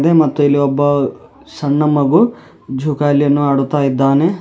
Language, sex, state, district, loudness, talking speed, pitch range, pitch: Kannada, male, Karnataka, Bidar, -14 LUFS, 120 wpm, 140-150 Hz, 145 Hz